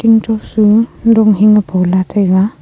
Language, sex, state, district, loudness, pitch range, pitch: Wancho, female, Arunachal Pradesh, Longding, -11 LUFS, 190-225 Hz, 210 Hz